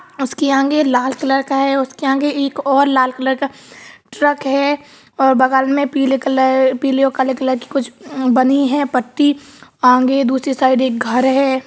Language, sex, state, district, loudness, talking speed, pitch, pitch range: Hindi, female, Uttar Pradesh, Jalaun, -15 LUFS, 175 wpm, 270 Hz, 260-280 Hz